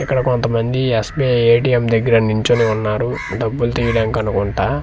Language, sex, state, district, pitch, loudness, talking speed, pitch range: Telugu, male, Andhra Pradesh, Manyam, 115 Hz, -16 LUFS, 110 wpm, 110-125 Hz